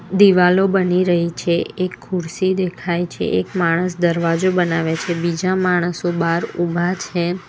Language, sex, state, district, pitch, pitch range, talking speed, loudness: Gujarati, female, Gujarat, Valsad, 175 Hz, 170-185 Hz, 145 wpm, -18 LUFS